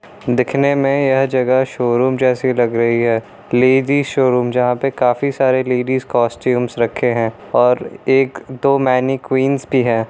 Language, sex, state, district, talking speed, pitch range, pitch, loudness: Hindi, male, Bihar, Kishanganj, 150 wpm, 120-135 Hz, 130 Hz, -16 LUFS